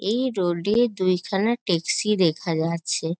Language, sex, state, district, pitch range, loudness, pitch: Bengali, female, West Bengal, North 24 Parganas, 170-215 Hz, -23 LUFS, 185 Hz